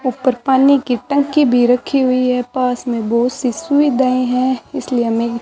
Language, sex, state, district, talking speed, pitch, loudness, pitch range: Hindi, male, Rajasthan, Bikaner, 190 wpm, 255 Hz, -15 LUFS, 245-265 Hz